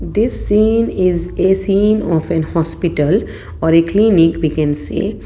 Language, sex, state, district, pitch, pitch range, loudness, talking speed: English, female, Gujarat, Valsad, 175 Hz, 165-205 Hz, -15 LUFS, 160 wpm